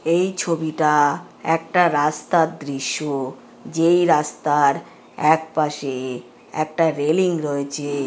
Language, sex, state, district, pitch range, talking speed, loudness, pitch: Bengali, female, West Bengal, Jhargram, 145-165 Hz, 90 wpm, -20 LUFS, 150 Hz